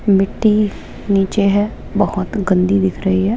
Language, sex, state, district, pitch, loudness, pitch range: Hindi, female, Rajasthan, Jaipur, 195 Hz, -16 LUFS, 190-205 Hz